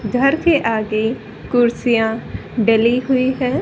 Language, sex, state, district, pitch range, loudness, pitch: Hindi, female, Haryana, Rohtak, 225-255 Hz, -17 LUFS, 240 Hz